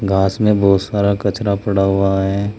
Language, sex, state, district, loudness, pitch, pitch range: Hindi, male, Uttar Pradesh, Saharanpur, -16 LUFS, 100 Hz, 95-100 Hz